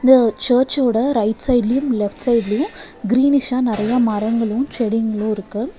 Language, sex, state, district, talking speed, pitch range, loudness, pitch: Tamil, female, Tamil Nadu, Nilgiris, 115 wpm, 220-255 Hz, -17 LUFS, 235 Hz